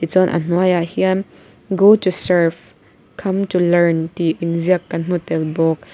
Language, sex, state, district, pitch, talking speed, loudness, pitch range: Mizo, female, Mizoram, Aizawl, 175 Hz, 170 wpm, -16 LUFS, 165-185 Hz